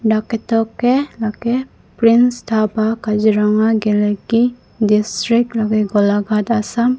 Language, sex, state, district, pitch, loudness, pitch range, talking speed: Karbi, female, Assam, Karbi Anglong, 220 Hz, -16 LUFS, 215-235 Hz, 105 wpm